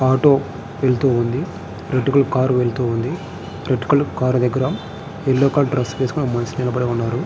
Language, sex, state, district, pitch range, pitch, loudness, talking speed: Telugu, male, Andhra Pradesh, Srikakulam, 125-140 Hz, 130 Hz, -19 LUFS, 140 wpm